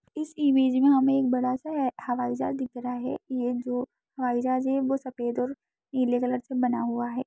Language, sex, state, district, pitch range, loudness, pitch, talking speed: Hindi, female, Uttarakhand, Tehri Garhwal, 245-265 Hz, -27 LUFS, 255 Hz, 215 wpm